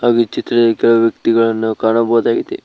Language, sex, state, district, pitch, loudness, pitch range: Kannada, male, Karnataka, Koppal, 115 Hz, -14 LUFS, 115-120 Hz